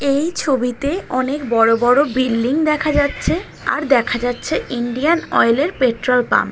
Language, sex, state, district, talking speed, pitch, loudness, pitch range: Bengali, female, West Bengal, North 24 Parganas, 155 wpm, 260 Hz, -17 LUFS, 245-295 Hz